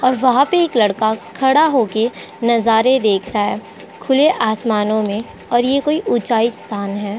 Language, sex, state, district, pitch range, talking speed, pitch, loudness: Hindi, female, Goa, North and South Goa, 215-260 Hz, 165 wpm, 230 Hz, -16 LUFS